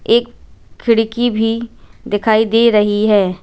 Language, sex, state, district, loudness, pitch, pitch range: Hindi, female, Uttar Pradesh, Lalitpur, -14 LUFS, 225 Hz, 210-230 Hz